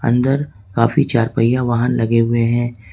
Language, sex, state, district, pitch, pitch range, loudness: Hindi, male, Jharkhand, Ranchi, 120 Hz, 115-125 Hz, -17 LUFS